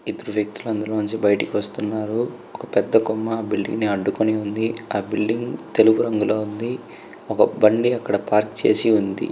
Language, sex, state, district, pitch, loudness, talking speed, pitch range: Telugu, male, Andhra Pradesh, Chittoor, 110 Hz, -20 LUFS, 165 wpm, 105-115 Hz